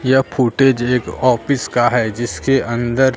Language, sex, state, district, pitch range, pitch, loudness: Hindi, male, Bihar, Katihar, 120-135 Hz, 125 Hz, -16 LUFS